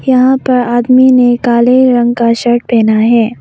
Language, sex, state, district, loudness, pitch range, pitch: Hindi, female, Arunachal Pradesh, Longding, -9 LUFS, 235-255 Hz, 240 Hz